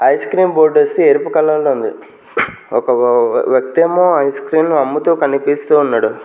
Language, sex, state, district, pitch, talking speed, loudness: Telugu, male, Andhra Pradesh, Manyam, 185 Hz, 135 wpm, -13 LUFS